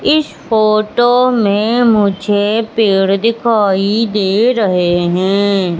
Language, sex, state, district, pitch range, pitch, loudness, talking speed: Hindi, female, Madhya Pradesh, Katni, 195-230 Hz, 210 Hz, -13 LUFS, 95 wpm